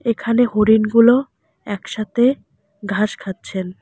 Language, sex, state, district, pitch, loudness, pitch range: Bengali, female, West Bengal, Alipurduar, 215 Hz, -17 LUFS, 200-235 Hz